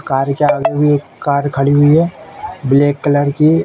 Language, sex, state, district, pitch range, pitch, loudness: Hindi, male, Uttar Pradesh, Ghazipur, 140-150 Hz, 145 Hz, -14 LUFS